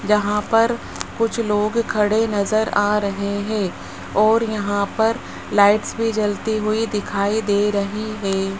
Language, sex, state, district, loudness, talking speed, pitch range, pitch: Hindi, male, Rajasthan, Jaipur, -20 LUFS, 140 wpm, 205-220 Hz, 210 Hz